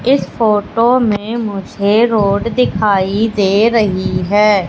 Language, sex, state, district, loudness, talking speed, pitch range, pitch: Hindi, female, Madhya Pradesh, Katni, -14 LUFS, 115 wpm, 200-230 Hz, 210 Hz